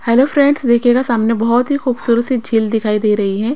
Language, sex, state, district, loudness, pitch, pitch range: Hindi, female, Bihar, Patna, -14 LUFS, 235 Hz, 225-255 Hz